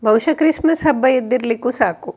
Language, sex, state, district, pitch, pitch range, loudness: Kannada, female, Karnataka, Dakshina Kannada, 260 Hz, 245-315 Hz, -16 LUFS